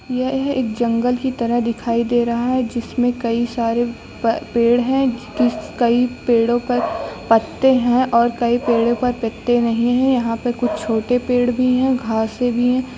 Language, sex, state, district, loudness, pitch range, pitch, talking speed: Hindi, female, Uttar Pradesh, Lucknow, -18 LUFS, 235-250 Hz, 240 Hz, 170 wpm